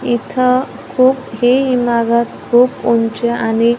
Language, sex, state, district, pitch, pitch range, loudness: Marathi, female, Maharashtra, Gondia, 240 Hz, 235-255 Hz, -14 LUFS